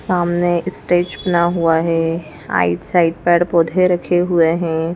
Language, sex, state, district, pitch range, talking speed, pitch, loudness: Hindi, female, Madhya Pradesh, Bhopal, 165-175 Hz, 145 wpm, 170 Hz, -16 LUFS